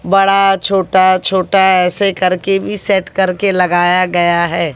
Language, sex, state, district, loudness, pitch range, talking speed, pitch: Hindi, female, Haryana, Jhajjar, -12 LUFS, 180-195 Hz, 140 wpm, 185 Hz